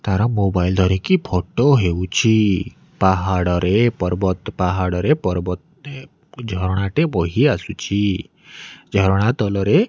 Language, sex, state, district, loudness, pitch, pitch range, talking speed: Odia, male, Odisha, Nuapada, -18 LUFS, 95 Hz, 90-115 Hz, 105 wpm